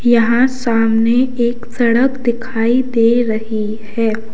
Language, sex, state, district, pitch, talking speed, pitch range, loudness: Hindi, male, Uttar Pradesh, Lalitpur, 235 Hz, 110 wpm, 225-245 Hz, -15 LUFS